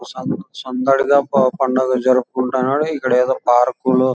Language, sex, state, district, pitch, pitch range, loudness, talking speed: Telugu, male, Andhra Pradesh, Chittoor, 130 Hz, 130-135 Hz, -17 LUFS, 130 wpm